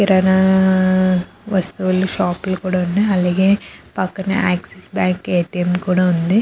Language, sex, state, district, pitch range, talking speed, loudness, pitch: Telugu, female, Andhra Pradesh, Krishna, 180-190 Hz, 120 wpm, -17 LUFS, 185 Hz